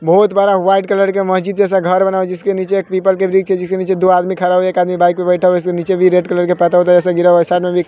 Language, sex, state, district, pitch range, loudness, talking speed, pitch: Hindi, male, Bihar, West Champaran, 180-190 Hz, -13 LUFS, 335 wpm, 185 Hz